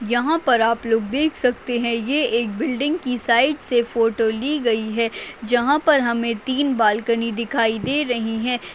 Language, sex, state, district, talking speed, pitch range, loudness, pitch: Hindi, female, Chhattisgarh, Bastar, 180 wpm, 230-265 Hz, -20 LUFS, 235 Hz